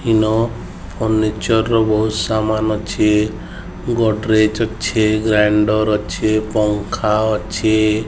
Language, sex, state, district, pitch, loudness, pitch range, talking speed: Odia, male, Odisha, Sambalpur, 110 Hz, -17 LUFS, 105-110 Hz, 90 wpm